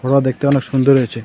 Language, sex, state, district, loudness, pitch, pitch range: Bengali, male, West Bengal, Alipurduar, -15 LUFS, 135 Hz, 130-140 Hz